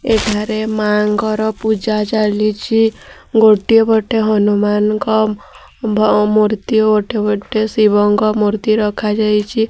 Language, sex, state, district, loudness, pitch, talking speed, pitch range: Odia, female, Odisha, Sambalpur, -14 LUFS, 215 Hz, 100 wpm, 210-220 Hz